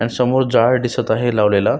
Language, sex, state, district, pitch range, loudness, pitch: Marathi, male, Maharashtra, Solapur, 115-125 Hz, -16 LUFS, 120 Hz